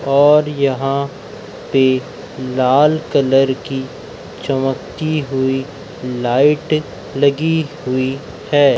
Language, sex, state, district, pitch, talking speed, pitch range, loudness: Hindi, male, Madhya Pradesh, Dhar, 135 Hz, 80 wpm, 130-145 Hz, -16 LUFS